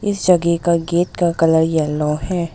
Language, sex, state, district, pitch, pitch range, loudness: Hindi, female, Arunachal Pradesh, Longding, 170 Hz, 160-175 Hz, -17 LUFS